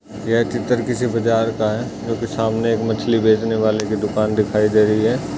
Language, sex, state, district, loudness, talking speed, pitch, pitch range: Hindi, male, Chhattisgarh, Bastar, -19 LUFS, 210 wpm, 110 Hz, 110-115 Hz